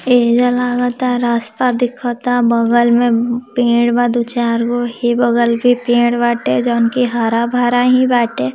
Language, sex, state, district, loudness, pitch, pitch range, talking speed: Hindi, female, Bihar, Gopalganj, -14 LUFS, 240 Hz, 235-245 Hz, 135 wpm